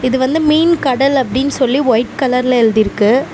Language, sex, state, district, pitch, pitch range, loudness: Tamil, female, Tamil Nadu, Namakkal, 260 Hz, 245-275 Hz, -13 LUFS